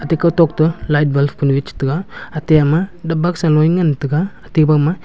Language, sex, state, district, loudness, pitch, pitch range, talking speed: Wancho, male, Arunachal Pradesh, Longding, -15 LUFS, 155 Hz, 145-170 Hz, 200 wpm